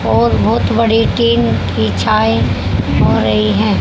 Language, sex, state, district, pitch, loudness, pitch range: Hindi, female, Haryana, Charkhi Dadri, 110 Hz, -13 LUFS, 95-115 Hz